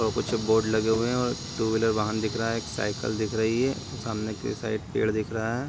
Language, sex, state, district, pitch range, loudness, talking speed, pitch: Hindi, male, Bihar, Sitamarhi, 110-115 Hz, -27 LUFS, 265 wpm, 110 Hz